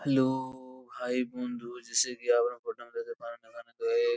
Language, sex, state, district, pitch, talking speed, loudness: Bengali, male, West Bengal, Purulia, 130 Hz, 60 wpm, -32 LUFS